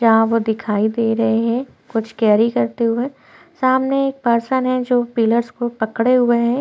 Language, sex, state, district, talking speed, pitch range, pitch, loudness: Hindi, female, Chhattisgarh, Korba, 180 wpm, 225-255 Hz, 235 Hz, -18 LUFS